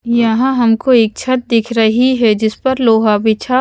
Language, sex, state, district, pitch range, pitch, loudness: Hindi, female, Haryana, Jhajjar, 220-255 Hz, 235 Hz, -13 LUFS